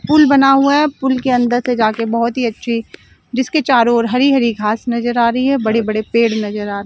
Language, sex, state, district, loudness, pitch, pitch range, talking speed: Hindi, female, Chandigarh, Chandigarh, -15 LUFS, 240 Hz, 230-265 Hz, 235 wpm